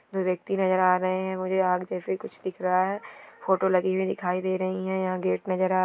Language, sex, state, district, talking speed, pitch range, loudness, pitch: Hindi, female, Bihar, Sitamarhi, 245 wpm, 185-190 Hz, -26 LUFS, 185 Hz